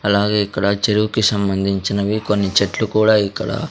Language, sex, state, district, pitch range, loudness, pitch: Telugu, male, Andhra Pradesh, Sri Satya Sai, 100-110 Hz, -17 LUFS, 105 Hz